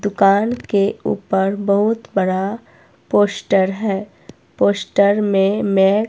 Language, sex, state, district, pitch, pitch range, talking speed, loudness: Hindi, female, Himachal Pradesh, Shimla, 200 Hz, 195-205 Hz, 100 wpm, -17 LUFS